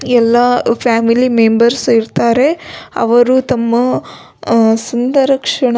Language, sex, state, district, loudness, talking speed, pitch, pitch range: Kannada, female, Karnataka, Belgaum, -12 LUFS, 95 wpm, 240 Hz, 230-255 Hz